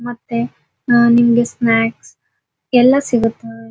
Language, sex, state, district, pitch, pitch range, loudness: Kannada, female, Karnataka, Dharwad, 235 Hz, 230-245 Hz, -14 LUFS